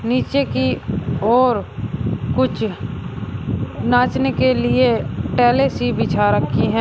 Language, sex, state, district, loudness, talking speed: Hindi, male, Uttar Pradesh, Shamli, -18 LUFS, 105 wpm